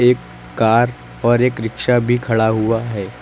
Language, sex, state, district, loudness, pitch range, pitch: Hindi, male, Uttar Pradesh, Lucknow, -17 LUFS, 110-120 Hz, 115 Hz